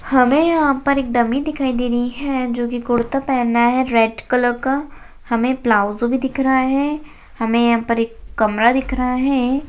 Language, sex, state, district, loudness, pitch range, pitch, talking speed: Hindi, female, Rajasthan, Nagaur, -18 LUFS, 235-270 Hz, 250 Hz, 190 wpm